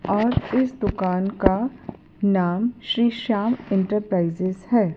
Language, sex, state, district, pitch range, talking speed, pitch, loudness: Hindi, female, Madhya Pradesh, Dhar, 185-235 Hz, 110 wpm, 205 Hz, -22 LUFS